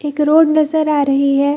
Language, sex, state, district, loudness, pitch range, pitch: Hindi, female, Bihar, Gaya, -14 LUFS, 280-310 Hz, 295 Hz